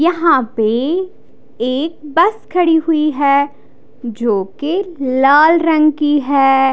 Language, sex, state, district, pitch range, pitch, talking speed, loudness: Hindi, female, Odisha, Khordha, 265-330 Hz, 295 Hz, 115 wpm, -14 LUFS